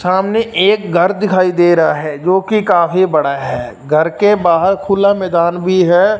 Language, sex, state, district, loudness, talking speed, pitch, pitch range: Hindi, male, Punjab, Fazilka, -13 LUFS, 185 wpm, 185 Hz, 170-195 Hz